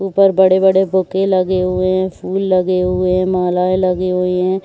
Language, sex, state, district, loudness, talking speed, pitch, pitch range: Hindi, female, Bihar, Saharsa, -15 LUFS, 205 wpm, 185 Hz, 185-190 Hz